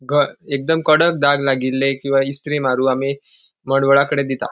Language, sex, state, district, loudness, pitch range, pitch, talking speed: Konkani, male, Goa, North and South Goa, -17 LUFS, 135-145 Hz, 140 Hz, 145 wpm